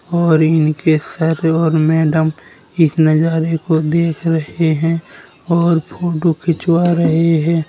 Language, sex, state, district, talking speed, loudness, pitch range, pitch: Bundeli, male, Uttar Pradesh, Jalaun, 125 wpm, -15 LUFS, 160-170 Hz, 165 Hz